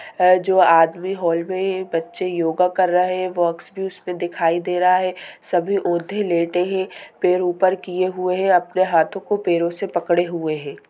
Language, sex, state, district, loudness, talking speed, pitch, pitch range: Hindi, female, Bihar, Sitamarhi, -20 LUFS, 185 wpm, 180 Hz, 170-185 Hz